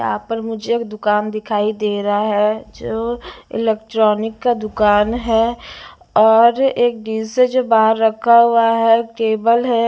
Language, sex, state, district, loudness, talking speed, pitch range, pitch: Hindi, female, Bihar, West Champaran, -16 LUFS, 145 wpm, 215-235 Hz, 225 Hz